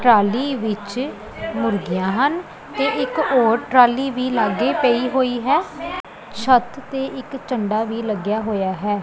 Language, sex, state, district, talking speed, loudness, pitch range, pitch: Punjabi, female, Punjab, Pathankot, 140 wpm, -20 LUFS, 215-265 Hz, 245 Hz